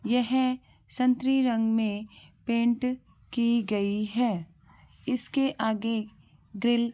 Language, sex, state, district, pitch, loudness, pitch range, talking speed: Hindi, female, Rajasthan, Churu, 235 Hz, -28 LUFS, 215-250 Hz, 95 wpm